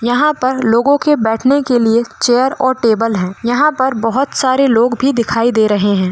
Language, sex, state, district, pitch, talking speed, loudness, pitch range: Hindi, female, Rajasthan, Nagaur, 245 Hz, 205 wpm, -13 LUFS, 225-265 Hz